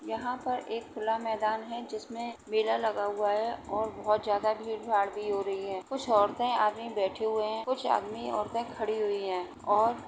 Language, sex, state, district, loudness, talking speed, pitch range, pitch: Hindi, female, Uttar Pradesh, Etah, -31 LUFS, 200 wpm, 205-230 Hz, 220 Hz